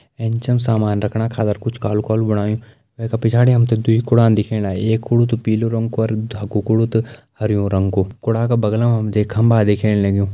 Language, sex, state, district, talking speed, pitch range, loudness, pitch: Garhwali, male, Uttarakhand, Uttarkashi, 220 wpm, 105-115 Hz, -17 LUFS, 110 Hz